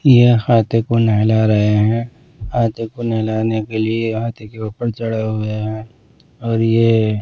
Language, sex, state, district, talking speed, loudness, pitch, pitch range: Hindi, male, Punjab, Pathankot, 160 wpm, -17 LUFS, 110 Hz, 110-115 Hz